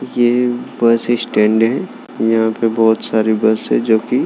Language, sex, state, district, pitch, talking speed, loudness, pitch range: Hindi, male, Maharashtra, Aurangabad, 115 Hz, 180 wpm, -15 LUFS, 110-120 Hz